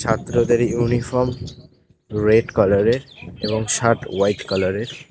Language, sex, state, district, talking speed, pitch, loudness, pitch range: Bengali, male, West Bengal, Cooch Behar, 120 wpm, 115 Hz, -19 LUFS, 105-120 Hz